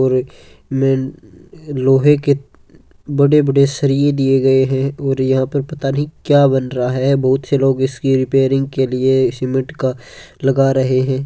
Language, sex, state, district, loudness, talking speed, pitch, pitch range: Hindi, male, Rajasthan, Churu, -15 LUFS, 160 wpm, 135 Hz, 130-140 Hz